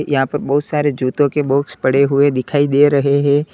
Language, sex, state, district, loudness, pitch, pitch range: Hindi, male, Uttar Pradesh, Lalitpur, -15 LUFS, 145 Hz, 140-145 Hz